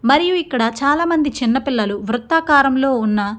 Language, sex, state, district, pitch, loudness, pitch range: Telugu, female, Andhra Pradesh, Guntur, 270 Hz, -16 LUFS, 230-295 Hz